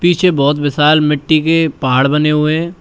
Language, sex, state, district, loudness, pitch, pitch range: Hindi, male, Uttar Pradesh, Shamli, -13 LUFS, 150 Hz, 145-165 Hz